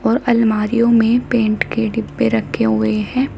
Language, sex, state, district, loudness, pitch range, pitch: Hindi, female, Uttar Pradesh, Shamli, -16 LUFS, 210-235 Hz, 225 Hz